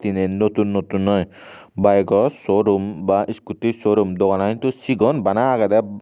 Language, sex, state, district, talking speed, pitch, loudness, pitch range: Chakma, male, Tripura, Unakoti, 140 wpm, 105 Hz, -19 LUFS, 100-110 Hz